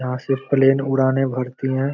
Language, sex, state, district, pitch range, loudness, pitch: Hindi, male, Bihar, Begusarai, 130-135 Hz, -19 LUFS, 135 Hz